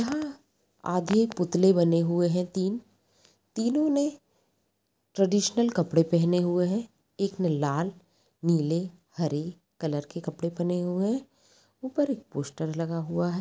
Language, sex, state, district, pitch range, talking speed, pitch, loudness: Hindi, female, Bihar, Madhepura, 170-215 Hz, 145 wpm, 180 Hz, -27 LUFS